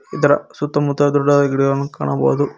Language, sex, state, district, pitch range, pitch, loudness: Kannada, male, Karnataka, Koppal, 135-145 Hz, 140 Hz, -17 LUFS